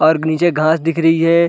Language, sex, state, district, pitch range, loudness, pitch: Hindi, male, Chhattisgarh, Raigarh, 160-165 Hz, -14 LUFS, 165 Hz